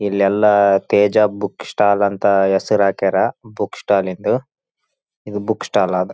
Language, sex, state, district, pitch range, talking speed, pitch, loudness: Kannada, male, Karnataka, Raichur, 100-105 Hz, 115 wpm, 100 Hz, -17 LUFS